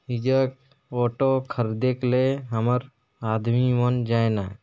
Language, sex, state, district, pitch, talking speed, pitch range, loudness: Hindi, male, Chhattisgarh, Jashpur, 125 Hz, 130 wpm, 115-130 Hz, -24 LUFS